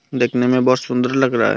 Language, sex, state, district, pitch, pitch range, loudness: Hindi, male, Tripura, Dhalai, 125 Hz, 125-130 Hz, -17 LUFS